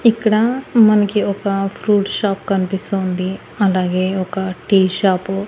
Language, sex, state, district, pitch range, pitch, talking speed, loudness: Telugu, female, Andhra Pradesh, Annamaya, 190-210 Hz, 195 Hz, 130 wpm, -17 LUFS